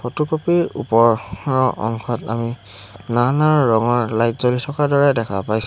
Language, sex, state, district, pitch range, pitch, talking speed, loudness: Assamese, male, Assam, Hailakandi, 115-140 Hz, 120 Hz, 135 wpm, -18 LUFS